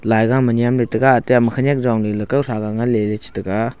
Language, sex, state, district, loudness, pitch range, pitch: Wancho, male, Arunachal Pradesh, Longding, -17 LUFS, 110-125 Hz, 115 Hz